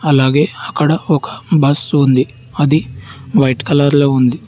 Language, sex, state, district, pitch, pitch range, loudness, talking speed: Telugu, male, Telangana, Hyderabad, 140 Hz, 130-150 Hz, -14 LUFS, 135 wpm